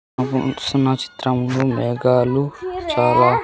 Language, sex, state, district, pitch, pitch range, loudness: Telugu, male, Andhra Pradesh, Sri Satya Sai, 130 Hz, 130-140 Hz, -19 LUFS